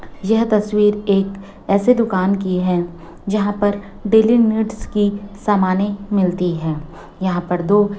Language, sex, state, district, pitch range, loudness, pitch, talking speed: Hindi, female, Chhattisgarh, Raipur, 185-210 Hz, -18 LUFS, 200 Hz, 145 wpm